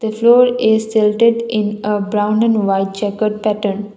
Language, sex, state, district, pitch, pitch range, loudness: English, female, Assam, Kamrup Metropolitan, 215 Hz, 205-225 Hz, -15 LUFS